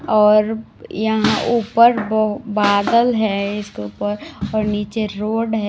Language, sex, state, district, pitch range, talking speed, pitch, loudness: Hindi, female, Jharkhand, Palamu, 205-225 Hz, 125 wpm, 215 Hz, -18 LUFS